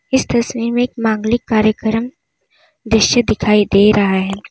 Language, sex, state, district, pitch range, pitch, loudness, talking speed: Hindi, female, Uttar Pradesh, Lalitpur, 210-240 Hz, 220 Hz, -15 LUFS, 145 wpm